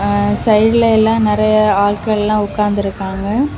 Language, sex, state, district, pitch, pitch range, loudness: Tamil, female, Tamil Nadu, Kanyakumari, 210 Hz, 205-220 Hz, -14 LUFS